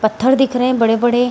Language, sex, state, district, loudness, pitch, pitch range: Hindi, female, Bihar, Gaya, -15 LUFS, 245 Hz, 230-255 Hz